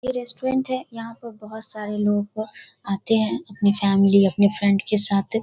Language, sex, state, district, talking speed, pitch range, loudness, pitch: Hindi, female, Bihar, Darbhanga, 175 wpm, 200-230 Hz, -21 LUFS, 210 Hz